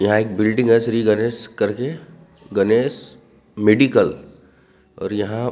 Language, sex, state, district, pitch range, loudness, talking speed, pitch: Hindi, male, Maharashtra, Gondia, 105-115 Hz, -18 LUFS, 120 wpm, 110 Hz